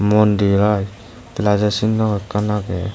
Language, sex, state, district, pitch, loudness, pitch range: Chakma, male, Tripura, West Tripura, 105 Hz, -18 LUFS, 100-105 Hz